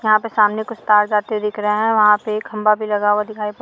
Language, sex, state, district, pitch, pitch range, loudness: Hindi, female, Jharkhand, Sahebganj, 210 Hz, 210-215 Hz, -17 LUFS